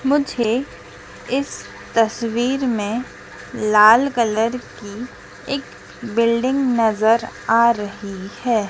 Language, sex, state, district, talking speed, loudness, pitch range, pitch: Hindi, female, Madhya Pradesh, Dhar, 90 wpm, -19 LUFS, 220-250 Hz, 230 Hz